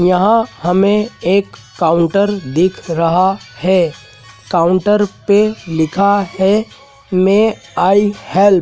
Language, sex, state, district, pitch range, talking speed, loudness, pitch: Hindi, male, Madhya Pradesh, Dhar, 170-205 Hz, 105 wpm, -14 LUFS, 190 Hz